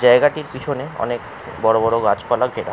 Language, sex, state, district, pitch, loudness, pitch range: Bengali, male, West Bengal, Jalpaiguri, 125 Hz, -19 LUFS, 110-145 Hz